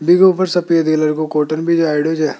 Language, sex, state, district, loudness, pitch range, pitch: Hindi, male, Rajasthan, Jaipur, -15 LUFS, 155-175 Hz, 160 Hz